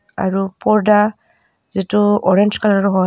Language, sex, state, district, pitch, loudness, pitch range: Assamese, female, Assam, Kamrup Metropolitan, 205 Hz, -15 LUFS, 195-210 Hz